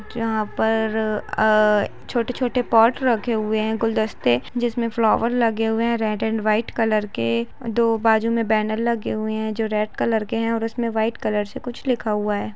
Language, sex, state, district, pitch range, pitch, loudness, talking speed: Hindi, female, Bihar, East Champaran, 215-230 Hz, 220 Hz, -21 LUFS, 190 wpm